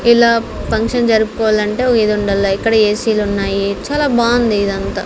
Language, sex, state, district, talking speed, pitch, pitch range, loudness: Telugu, female, Andhra Pradesh, Sri Satya Sai, 140 wpm, 220 Hz, 200-235 Hz, -14 LUFS